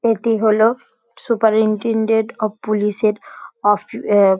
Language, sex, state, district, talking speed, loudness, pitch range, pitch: Bengali, female, West Bengal, Dakshin Dinajpur, 110 wpm, -17 LUFS, 210-225 Hz, 220 Hz